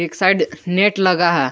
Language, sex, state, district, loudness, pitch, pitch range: Hindi, male, Jharkhand, Garhwa, -16 LUFS, 180 Hz, 170-190 Hz